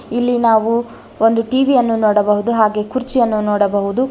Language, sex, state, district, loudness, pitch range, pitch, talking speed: Kannada, female, Karnataka, Bangalore, -15 LUFS, 210-245 Hz, 225 Hz, 130 wpm